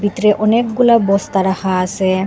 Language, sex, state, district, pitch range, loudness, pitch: Bengali, female, Assam, Hailakandi, 190-215 Hz, -14 LUFS, 200 Hz